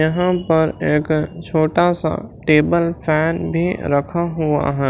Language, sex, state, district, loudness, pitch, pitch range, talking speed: Hindi, male, Chhattisgarh, Raipur, -18 LUFS, 160 Hz, 155-170 Hz, 135 wpm